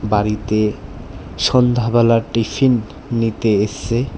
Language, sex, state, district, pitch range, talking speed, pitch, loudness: Bengali, male, Tripura, West Tripura, 105-120 Hz, 70 wpm, 115 Hz, -17 LUFS